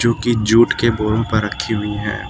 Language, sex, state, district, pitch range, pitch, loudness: Hindi, male, Uttar Pradesh, Lucknow, 105-115 Hz, 110 Hz, -17 LUFS